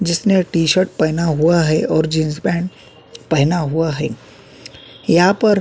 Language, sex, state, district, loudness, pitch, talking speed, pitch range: Hindi, male, Uttarakhand, Tehri Garhwal, -16 LUFS, 165 Hz, 140 wpm, 155-180 Hz